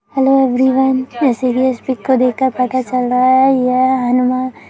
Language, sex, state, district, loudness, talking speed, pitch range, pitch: Hindi, female, Bihar, Gopalganj, -14 LUFS, 205 wpm, 250-260 Hz, 255 Hz